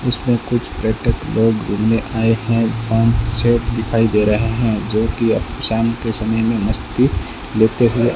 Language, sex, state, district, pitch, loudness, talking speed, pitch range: Hindi, male, Rajasthan, Bikaner, 115 Hz, -17 LUFS, 170 wpm, 110-115 Hz